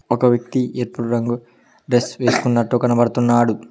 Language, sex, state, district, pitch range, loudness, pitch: Telugu, male, Telangana, Mahabubabad, 120-125 Hz, -18 LUFS, 120 Hz